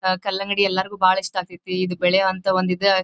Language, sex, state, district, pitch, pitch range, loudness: Kannada, female, Karnataka, Dharwad, 185 Hz, 185-195 Hz, -21 LUFS